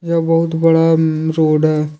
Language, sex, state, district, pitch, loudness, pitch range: Hindi, male, Jharkhand, Deoghar, 160 Hz, -14 LUFS, 155-165 Hz